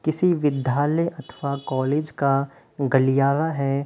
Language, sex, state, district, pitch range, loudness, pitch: Hindi, male, Uttar Pradesh, Hamirpur, 135-155 Hz, -22 LUFS, 140 Hz